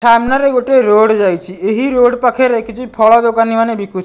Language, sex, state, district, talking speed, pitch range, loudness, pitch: Odia, male, Odisha, Nuapada, 210 wpm, 215-250 Hz, -12 LUFS, 230 Hz